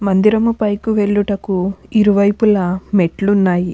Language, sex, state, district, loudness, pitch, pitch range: Telugu, female, Andhra Pradesh, Anantapur, -15 LUFS, 200 Hz, 190-210 Hz